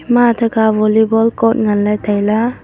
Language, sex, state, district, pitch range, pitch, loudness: Wancho, female, Arunachal Pradesh, Longding, 215-230 Hz, 220 Hz, -13 LUFS